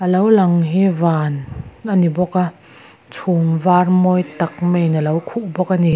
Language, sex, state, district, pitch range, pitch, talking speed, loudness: Mizo, female, Mizoram, Aizawl, 160-185 Hz, 175 Hz, 190 wpm, -16 LUFS